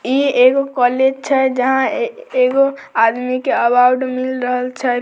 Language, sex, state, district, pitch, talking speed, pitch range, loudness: Maithili, female, Bihar, Samastipur, 260 Hz, 145 wpm, 250-275 Hz, -15 LUFS